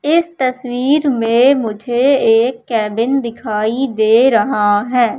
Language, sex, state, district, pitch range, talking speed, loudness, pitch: Hindi, female, Madhya Pradesh, Katni, 225-265 Hz, 115 wpm, -14 LUFS, 245 Hz